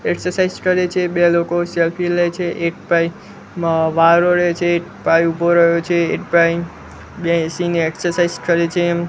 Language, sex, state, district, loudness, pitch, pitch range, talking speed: Gujarati, male, Gujarat, Gandhinagar, -17 LUFS, 170 Hz, 170-175 Hz, 165 wpm